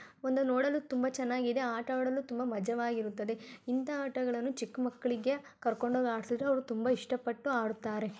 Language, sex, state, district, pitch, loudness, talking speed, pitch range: Kannada, female, Karnataka, Gulbarga, 250 Hz, -34 LUFS, 145 wpm, 235-260 Hz